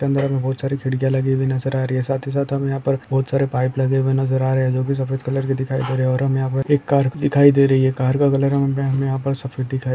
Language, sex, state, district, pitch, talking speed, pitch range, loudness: Hindi, male, Chhattisgarh, Bastar, 135 Hz, 320 wpm, 130-135 Hz, -19 LUFS